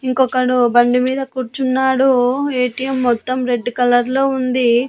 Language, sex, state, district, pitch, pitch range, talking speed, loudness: Telugu, female, Andhra Pradesh, Annamaya, 255 Hz, 245-265 Hz, 110 wpm, -16 LUFS